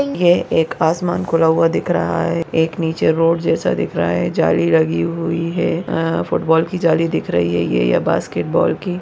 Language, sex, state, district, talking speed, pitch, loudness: Hindi, female, Maharashtra, Nagpur, 215 wpm, 160 Hz, -17 LUFS